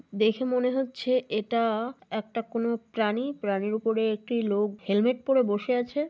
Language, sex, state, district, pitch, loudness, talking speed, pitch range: Bengali, female, West Bengal, North 24 Parganas, 230 Hz, -27 LUFS, 150 wpm, 215-250 Hz